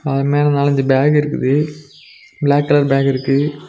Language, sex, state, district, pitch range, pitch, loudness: Tamil, male, Tamil Nadu, Nilgiris, 135-145 Hz, 145 Hz, -15 LUFS